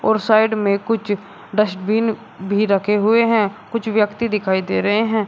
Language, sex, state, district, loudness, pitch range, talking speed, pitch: Hindi, male, Uttar Pradesh, Shamli, -18 LUFS, 200-220 Hz, 170 wpm, 210 Hz